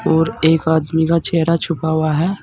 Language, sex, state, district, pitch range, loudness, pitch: Hindi, male, Uttar Pradesh, Saharanpur, 160-165 Hz, -16 LUFS, 160 Hz